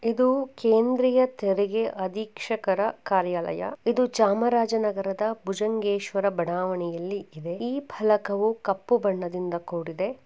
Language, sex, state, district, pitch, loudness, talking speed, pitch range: Kannada, female, Karnataka, Chamarajanagar, 205 Hz, -26 LUFS, 90 wpm, 190-225 Hz